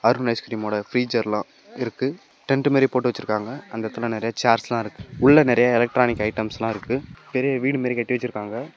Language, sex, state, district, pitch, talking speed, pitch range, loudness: Tamil, male, Tamil Nadu, Namakkal, 120 Hz, 170 wpm, 110-130 Hz, -22 LUFS